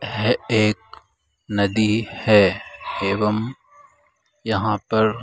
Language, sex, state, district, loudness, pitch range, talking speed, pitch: Hindi, male, Bihar, Saran, -21 LUFS, 105-110 Hz, 90 wpm, 110 Hz